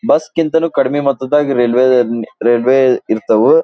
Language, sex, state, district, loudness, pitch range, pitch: Kannada, male, Karnataka, Dharwad, -13 LUFS, 125-160 Hz, 135 Hz